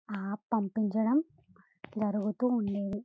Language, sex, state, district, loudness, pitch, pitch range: Telugu, female, Telangana, Karimnagar, -31 LUFS, 210 Hz, 205-225 Hz